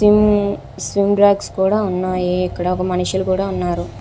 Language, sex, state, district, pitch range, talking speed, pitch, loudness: Telugu, female, Andhra Pradesh, Visakhapatnam, 180-200 Hz, 150 wpm, 190 Hz, -17 LUFS